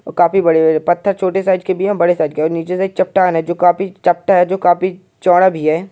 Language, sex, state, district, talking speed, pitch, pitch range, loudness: Hindi, male, Uttar Pradesh, Jyotiba Phule Nagar, 275 wpm, 180 Hz, 170-190 Hz, -14 LUFS